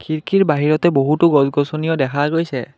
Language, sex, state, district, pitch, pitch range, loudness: Assamese, male, Assam, Kamrup Metropolitan, 150 Hz, 140-165 Hz, -16 LUFS